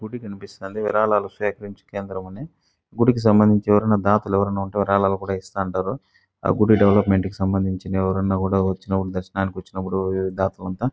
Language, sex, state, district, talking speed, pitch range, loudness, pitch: Telugu, male, Andhra Pradesh, Chittoor, 165 wpm, 95-105 Hz, -21 LUFS, 95 Hz